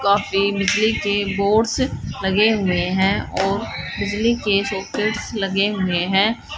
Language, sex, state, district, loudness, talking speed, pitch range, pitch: Hindi, female, Haryana, Jhajjar, -19 LUFS, 130 wpm, 195-210 Hz, 200 Hz